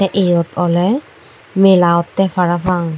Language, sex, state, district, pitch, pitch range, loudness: Chakma, female, Tripura, Dhalai, 180 Hz, 175-195 Hz, -14 LUFS